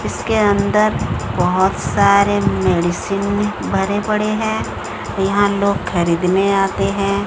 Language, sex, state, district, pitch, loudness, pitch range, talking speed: Hindi, female, Odisha, Sambalpur, 200 Hz, -17 LUFS, 185-205 Hz, 105 wpm